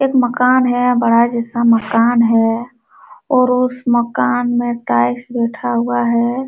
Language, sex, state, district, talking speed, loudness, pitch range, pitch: Hindi, female, Uttar Pradesh, Jalaun, 140 wpm, -15 LUFS, 230-245 Hz, 240 Hz